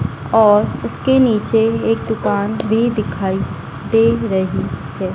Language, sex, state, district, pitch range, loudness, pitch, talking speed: Hindi, female, Madhya Pradesh, Dhar, 200-225 Hz, -16 LUFS, 220 Hz, 115 wpm